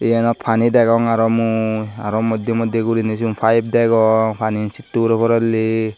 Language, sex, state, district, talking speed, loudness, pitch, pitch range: Chakma, male, Tripura, Dhalai, 160 wpm, -17 LUFS, 115 Hz, 110-115 Hz